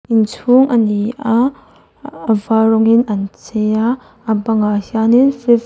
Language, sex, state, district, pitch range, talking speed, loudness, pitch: Mizo, female, Mizoram, Aizawl, 215-240 Hz, 150 wpm, -14 LUFS, 225 Hz